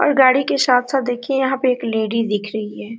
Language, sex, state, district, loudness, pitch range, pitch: Hindi, female, Bihar, Araria, -18 LUFS, 225-265 Hz, 250 Hz